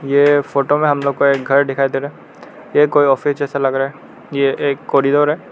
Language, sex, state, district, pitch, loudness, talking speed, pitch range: Hindi, male, Arunachal Pradesh, Lower Dibang Valley, 140 Hz, -16 LUFS, 250 wpm, 135-145 Hz